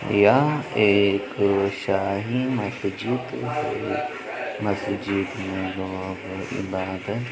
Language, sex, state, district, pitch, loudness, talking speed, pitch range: Hindi, male, Uttar Pradesh, Budaun, 100 Hz, -24 LUFS, 65 wpm, 95-125 Hz